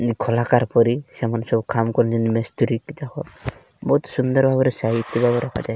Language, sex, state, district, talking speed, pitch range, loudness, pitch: Odia, male, Odisha, Malkangiri, 145 wpm, 115-130 Hz, -20 LUFS, 120 Hz